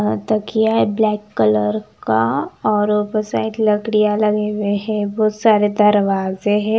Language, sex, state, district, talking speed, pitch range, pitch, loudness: Hindi, female, Himachal Pradesh, Shimla, 150 wpm, 205-215 Hz, 210 Hz, -17 LUFS